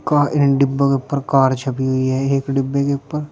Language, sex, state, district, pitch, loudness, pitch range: Hindi, male, Uttar Pradesh, Shamli, 140 Hz, -18 LUFS, 135-140 Hz